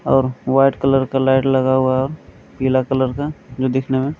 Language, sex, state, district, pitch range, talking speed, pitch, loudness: Hindi, male, Bihar, Jamui, 130-135 Hz, 200 wpm, 130 Hz, -18 LUFS